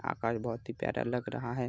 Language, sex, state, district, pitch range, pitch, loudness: Hindi, male, Bihar, Araria, 115-125 Hz, 120 Hz, -35 LUFS